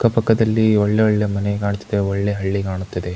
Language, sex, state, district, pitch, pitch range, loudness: Kannada, male, Karnataka, Mysore, 100 Hz, 100-110 Hz, -19 LUFS